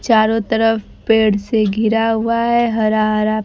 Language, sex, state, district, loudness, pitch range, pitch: Hindi, female, Bihar, Kaimur, -16 LUFS, 215-225 Hz, 220 Hz